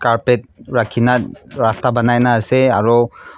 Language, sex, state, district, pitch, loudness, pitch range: Nagamese, male, Nagaland, Kohima, 120 Hz, -15 LUFS, 115-125 Hz